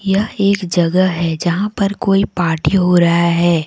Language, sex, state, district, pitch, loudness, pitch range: Hindi, female, Jharkhand, Deoghar, 180 Hz, -15 LUFS, 170-195 Hz